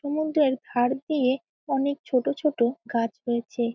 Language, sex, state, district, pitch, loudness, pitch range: Bengali, female, West Bengal, Jalpaiguri, 260 Hz, -26 LUFS, 235-285 Hz